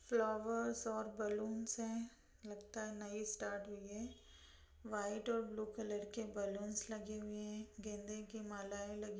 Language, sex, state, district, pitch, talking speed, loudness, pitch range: Hindi, female, Bihar, Sitamarhi, 215 Hz, 145 wpm, -45 LUFS, 205-220 Hz